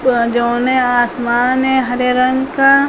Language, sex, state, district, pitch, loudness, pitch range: Hindi, female, Uttar Pradesh, Hamirpur, 250 Hz, -14 LUFS, 240-260 Hz